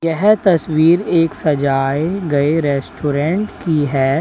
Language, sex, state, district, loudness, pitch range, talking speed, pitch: Hindi, male, Uttar Pradesh, Lalitpur, -16 LUFS, 140-170 Hz, 115 wpm, 155 Hz